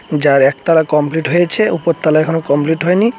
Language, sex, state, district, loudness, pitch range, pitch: Bengali, male, West Bengal, Cooch Behar, -13 LUFS, 150-170 Hz, 160 Hz